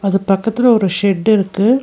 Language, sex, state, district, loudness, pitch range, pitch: Tamil, female, Tamil Nadu, Nilgiris, -14 LUFS, 195-225 Hz, 200 Hz